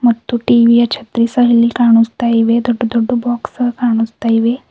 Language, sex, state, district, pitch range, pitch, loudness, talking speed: Kannada, female, Karnataka, Bidar, 230-240 Hz, 235 Hz, -13 LUFS, 165 wpm